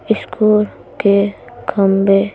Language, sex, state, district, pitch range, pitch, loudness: Hindi, female, Madhya Pradesh, Bhopal, 195-215 Hz, 205 Hz, -15 LUFS